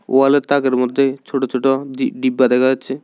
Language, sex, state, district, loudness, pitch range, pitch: Bengali, male, Tripura, South Tripura, -16 LUFS, 130-135 Hz, 135 Hz